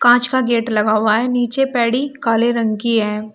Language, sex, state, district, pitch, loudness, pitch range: Hindi, female, Uttar Pradesh, Shamli, 235 Hz, -16 LUFS, 220-245 Hz